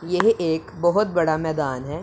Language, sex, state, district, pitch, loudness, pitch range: Hindi, male, Punjab, Pathankot, 160 Hz, -22 LUFS, 155-175 Hz